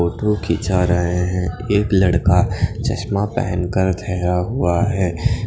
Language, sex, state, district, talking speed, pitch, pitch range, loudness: Hindi, male, Odisha, Khordha, 130 wpm, 95 Hz, 90-105 Hz, -19 LUFS